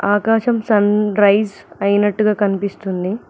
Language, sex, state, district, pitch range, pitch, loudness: Telugu, female, Telangana, Mahabubabad, 200-210 Hz, 205 Hz, -16 LUFS